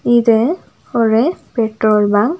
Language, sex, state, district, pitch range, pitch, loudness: Tamil, female, Tamil Nadu, Nilgiris, 220-240 Hz, 225 Hz, -15 LUFS